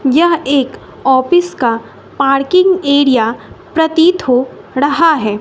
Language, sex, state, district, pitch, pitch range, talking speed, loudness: Hindi, female, Bihar, West Champaran, 285 Hz, 260-335 Hz, 110 wpm, -12 LUFS